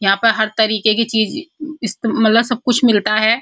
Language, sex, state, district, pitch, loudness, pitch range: Hindi, female, Uttar Pradesh, Muzaffarnagar, 225 Hz, -15 LUFS, 215-240 Hz